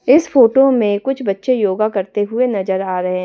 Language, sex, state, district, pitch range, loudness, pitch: Hindi, female, Delhi, New Delhi, 195-255 Hz, -15 LUFS, 215 Hz